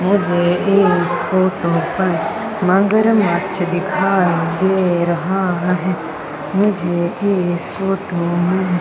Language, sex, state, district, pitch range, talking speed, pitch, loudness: Hindi, female, Madhya Pradesh, Umaria, 175-195 Hz, 90 wpm, 180 Hz, -17 LUFS